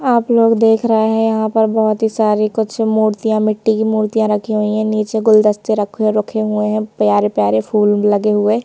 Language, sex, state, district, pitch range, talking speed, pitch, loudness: Hindi, female, Madhya Pradesh, Bhopal, 210-220 Hz, 195 wpm, 215 Hz, -15 LUFS